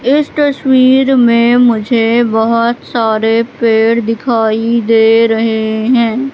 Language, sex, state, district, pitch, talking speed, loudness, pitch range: Hindi, female, Madhya Pradesh, Katni, 230 Hz, 105 wpm, -11 LUFS, 225-245 Hz